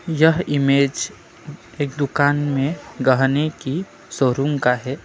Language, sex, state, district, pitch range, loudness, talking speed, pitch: Hindi, male, West Bengal, Alipurduar, 135-150 Hz, -20 LUFS, 120 wpm, 145 Hz